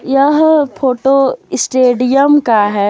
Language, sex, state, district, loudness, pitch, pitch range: Hindi, female, Jharkhand, Deoghar, -11 LUFS, 270 Hz, 250-280 Hz